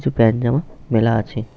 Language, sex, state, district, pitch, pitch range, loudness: Bengali, male, West Bengal, Paschim Medinipur, 115 Hz, 110-120 Hz, -19 LUFS